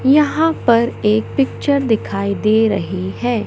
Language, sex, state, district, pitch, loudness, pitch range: Hindi, male, Madhya Pradesh, Katni, 230 Hz, -16 LUFS, 210-275 Hz